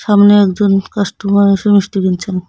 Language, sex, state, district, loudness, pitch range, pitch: Bengali, female, West Bengal, Cooch Behar, -12 LUFS, 195-205 Hz, 200 Hz